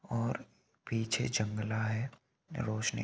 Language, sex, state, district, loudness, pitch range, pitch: Hindi, male, Rajasthan, Nagaur, -35 LUFS, 110-130 Hz, 115 Hz